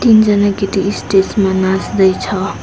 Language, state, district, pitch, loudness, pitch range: Nepali, West Bengal, Darjeeling, 195 Hz, -13 LUFS, 190-205 Hz